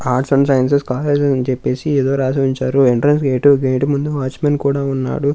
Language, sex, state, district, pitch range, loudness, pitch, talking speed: Telugu, male, Andhra Pradesh, Krishna, 130-140 Hz, -16 LUFS, 135 Hz, 225 wpm